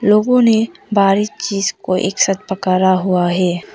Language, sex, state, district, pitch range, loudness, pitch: Hindi, female, Arunachal Pradesh, Papum Pare, 185-210 Hz, -15 LUFS, 195 Hz